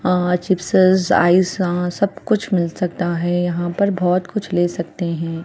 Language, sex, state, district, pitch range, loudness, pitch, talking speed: Hindi, female, Bihar, Patna, 175-185 Hz, -18 LUFS, 180 Hz, 175 wpm